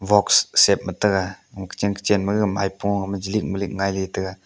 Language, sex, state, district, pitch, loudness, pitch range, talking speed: Wancho, male, Arunachal Pradesh, Longding, 100 Hz, -21 LUFS, 95-100 Hz, 190 wpm